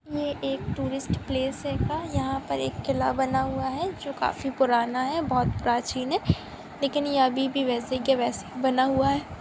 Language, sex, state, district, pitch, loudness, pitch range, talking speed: Hindi, female, Maharashtra, Chandrapur, 260 Hz, -27 LUFS, 235-270 Hz, 200 wpm